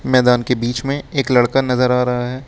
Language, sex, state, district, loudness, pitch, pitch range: Hindi, male, Uttar Pradesh, Lucknow, -16 LUFS, 125 Hz, 125-135 Hz